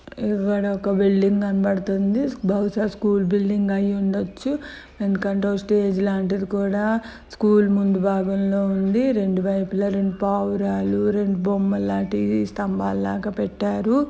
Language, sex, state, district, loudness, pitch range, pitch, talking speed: Telugu, female, Telangana, Nalgonda, -22 LUFS, 195-205 Hz, 200 Hz, 110 wpm